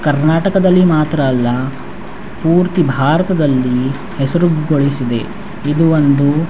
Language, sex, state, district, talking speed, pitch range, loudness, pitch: Kannada, male, Karnataka, Raichur, 90 wpm, 135-175 Hz, -14 LUFS, 155 Hz